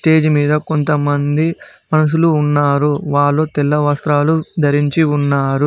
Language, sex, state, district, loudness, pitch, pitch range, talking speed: Telugu, male, Telangana, Mahabubabad, -15 LUFS, 150 Hz, 145-155 Hz, 105 wpm